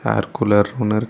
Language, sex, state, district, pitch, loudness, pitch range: Tamil, male, Tamil Nadu, Kanyakumari, 105 Hz, -18 LUFS, 105-115 Hz